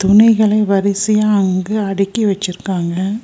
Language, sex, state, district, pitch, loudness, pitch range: Tamil, female, Tamil Nadu, Nilgiris, 200 Hz, -15 LUFS, 195-215 Hz